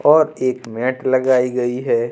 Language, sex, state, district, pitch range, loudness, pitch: Hindi, male, Jharkhand, Ranchi, 125-130 Hz, -18 LUFS, 125 Hz